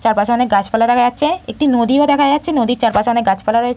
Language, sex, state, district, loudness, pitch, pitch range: Bengali, female, West Bengal, Purulia, -14 LUFS, 240 Hz, 225-280 Hz